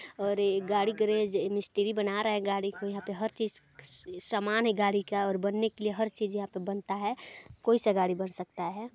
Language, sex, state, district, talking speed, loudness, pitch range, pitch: Hindi, female, Chhattisgarh, Balrampur, 230 wpm, -31 LUFS, 195-215 Hz, 205 Hz